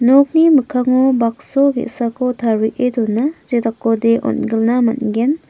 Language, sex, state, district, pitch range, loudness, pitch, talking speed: Garo, female, Meghalaya, West Garo Hills, 230-265 Hz, -16 LUFS, 245 Hz, 100 wpm